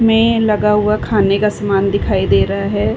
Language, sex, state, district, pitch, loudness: Hindi, female, Uttar Pradesh, Varanasi, 200 Hz, -14 LUFS